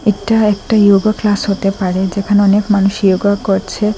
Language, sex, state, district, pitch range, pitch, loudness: Bengali, female, Assam, Hailakandi, 195-210 Hz, 200 Hz, -13 LUFS